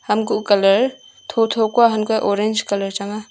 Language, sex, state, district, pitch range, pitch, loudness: Wancho, female, Arunachal Pradesh, Longding, 205-225 Hz, 215 Hz, -18 LUFS